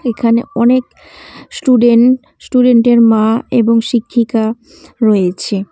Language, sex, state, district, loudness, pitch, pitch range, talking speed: Bengali, female, West Bengal, Cooch Behar, -12 LUFS, 235 Hz, 225-245 Hz, 85 wpm